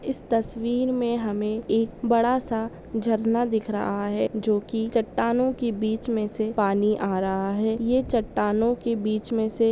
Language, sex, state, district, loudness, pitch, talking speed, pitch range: Hindi, female, Andhra Pradesh, Chittoor, -25 LUFS, 225 Hz, 160 wpm, 215-235 Hz